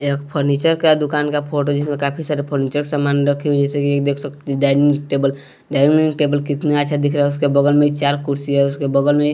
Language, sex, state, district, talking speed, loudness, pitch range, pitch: Hindi, male, Bihar, West Champaran, 245 wpm, -17 LUFS, 140-145 Hz, 145 Hz